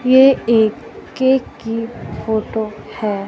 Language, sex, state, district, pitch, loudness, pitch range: Hindi, male, Madhya Pradesh, Katni, 225 Hz, -17 LUFS, 215-255 Hz